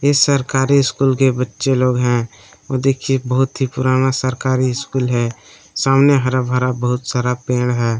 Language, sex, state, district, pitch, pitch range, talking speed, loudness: Hindi, male, Jharkhand, Palamu, 130 Hz, 125-135 Hz, 155 wpm, -17 LUFS